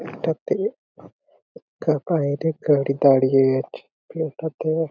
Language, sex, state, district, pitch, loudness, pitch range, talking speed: Bengali, male, West Bengal, Purulia, 155 Hz, -21 LUFS, 140-160 Hz, 135 wpm